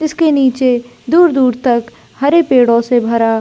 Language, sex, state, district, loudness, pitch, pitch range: Hindi, female, Jharkhand, Jamtara, -12 LUFS, 255 Hz, 235-290 Hz